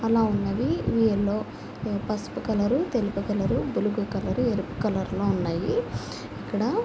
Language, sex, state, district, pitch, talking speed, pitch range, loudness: Telugu, female, Andhra Pradesh, Guntur, 215 Hz, 115 wpm, 205-230 Hz, -26 LUFS